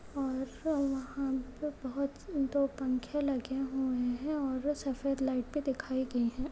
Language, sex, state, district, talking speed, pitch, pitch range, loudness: Hindi, female, Uttar Pradesh, Hamirpur, 145 wpm, 270 Hz, 260-280 Hz, -34 LUFS